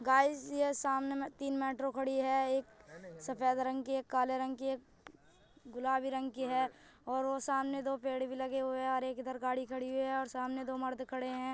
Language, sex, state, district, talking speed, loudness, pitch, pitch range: Hindi, female, Uttar Pradesh, Jyotiba Phule Nagar, 225 wpm, -36 LUFS, 265 Hz, 260-270 Hz